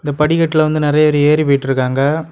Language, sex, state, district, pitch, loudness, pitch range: Tamil, male, Tamil Nadu, Kanyakumari, 150 Hz, -14 LUFS, 140-155 Hz